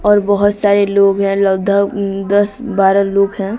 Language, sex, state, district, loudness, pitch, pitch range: Hindi, female, Odisha, Sambalpur, -14 LUFS, 200 Hz, 195-205 Hz